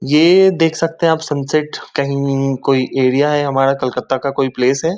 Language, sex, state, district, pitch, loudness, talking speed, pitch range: Hindi, male, West Bengal, Kolkata, 140 Hz, -15 LUFS, 205 wpm, 135-160 Hz